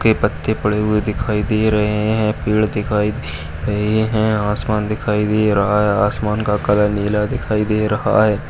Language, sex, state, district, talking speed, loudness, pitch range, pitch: Hindi, female, Uttar Pradesh, Varanasi, 185 wpm, -18 LUFS, 105-110 Hz, 105 Hz